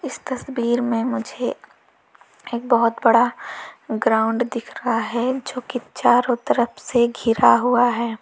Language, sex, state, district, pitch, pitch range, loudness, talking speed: Hindi, female, Uttar Pradesh, Lalitpur, 240 Hz, 235-250 Hz, -20 LUFS, 140 wpm